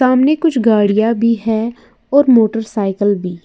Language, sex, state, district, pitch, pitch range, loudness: Hindi, female, Uttar Pradesh, Lalitpur, 225 Hz, 210-250 Hz, -14 LUFS